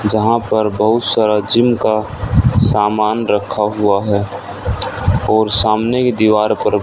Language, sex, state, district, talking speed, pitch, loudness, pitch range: Hindi, male, Haryana, Rohtak, 130 wpm, 110 Hz, -15 LUFS, 105-115 Hz